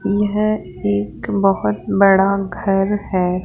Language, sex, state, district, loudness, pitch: Hindi, female, Rajasthan, Jaipur, -17 LUFS, 195 Hz